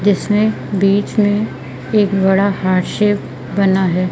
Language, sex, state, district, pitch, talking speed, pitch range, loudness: Hindi, female, Madhya Pradesh, Umaria, 200 Hz, 130 wpm, 190-210 Hz, -15 LUFS